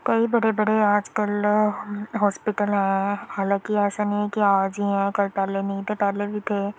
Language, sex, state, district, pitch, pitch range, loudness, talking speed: Hindi, female, Uttar Pradesh, Jyotiba Phule Nagar, 205 Hz, 200-210 Hz, -23 LUFS, 195 wpm